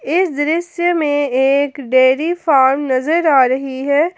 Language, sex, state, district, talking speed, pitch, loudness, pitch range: Hindi, female, Jharkhand, Palamu, 145 wpm, 285 Hz, -15 LUFS, 265-330 Hz